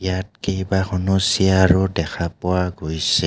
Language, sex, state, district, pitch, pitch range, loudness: Assamese, male, Assam, Kamrup Metropolitan, 95 Hz, 90-95 Hz, -20 LUFS